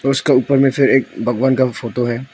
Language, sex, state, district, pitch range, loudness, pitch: Hindi, female, Arunachal Pradesh, Longding, 125-135 Hz, -16 LUFS, 130 Hz